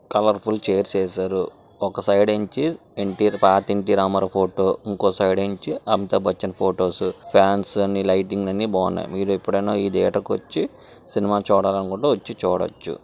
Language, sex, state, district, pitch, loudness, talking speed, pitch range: Telugu, male, Andhra Pradesh, Srikakulam, 100 Hz, -21 LUFS, 165 wpm, 95-100 Hz